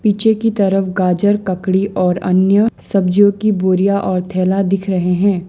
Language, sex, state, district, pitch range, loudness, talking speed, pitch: Hindi, female, Assam, Sonitpur, 185-200 Hz, -15 LUFS, 165 wpm, 195 Hz